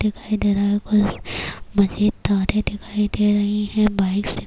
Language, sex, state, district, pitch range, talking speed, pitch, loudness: Urdu, female, Bihar, Kishanganj, 200-210 Hz, 150 wpm, 205 Hz, -21 LUFS